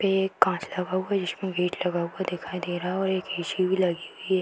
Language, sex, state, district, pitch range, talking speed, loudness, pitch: Hindi, female, Bihar, Darbhanga, 180-190 Hz, 285 wpm, -27 LUFS, 185 Hz